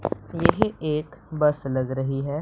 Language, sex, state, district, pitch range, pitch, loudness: Hindi, male, Punjab, Pathankot, 135-155 Hz, 150 Hz, -24 LUFS